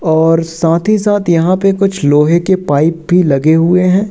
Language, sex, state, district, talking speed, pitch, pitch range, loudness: Hindi, male, Madhya Pradesh, Katni, 205 wpm, 170 Hz, 160-190 Hz, -11 LUFS